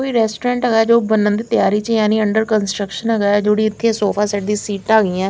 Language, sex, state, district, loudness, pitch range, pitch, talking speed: Hindi, female, Chandigarh, Chandigarh, -16 LUFS, 205-225 Hz, 215 Hz, 190 wpm